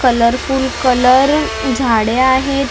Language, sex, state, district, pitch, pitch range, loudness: Marathi, female, Maharashtra, Mumbai Suburban, 260 Hz, 250-270 Hz, -13 LUFS